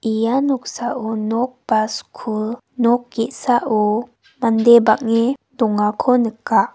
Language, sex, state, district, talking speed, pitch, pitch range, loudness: Garo, female, Meghalaya, West Garo Hills, 100 wpm, 230 Hz, 220-245 Hz, -18 LUFS